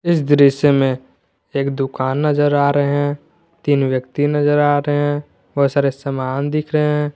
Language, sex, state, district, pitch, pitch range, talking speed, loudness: Hindi, male, Jharkhand, Garhwa, 145 Hz, 140-150 Hz, 150 wpm, -17 LUFS